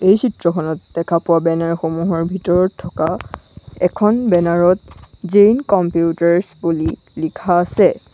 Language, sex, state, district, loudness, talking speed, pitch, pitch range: Assamese, female, Assam, Sonitpur, -16 LUFS, 120 wpm, 175 Hz, 165-190 Hz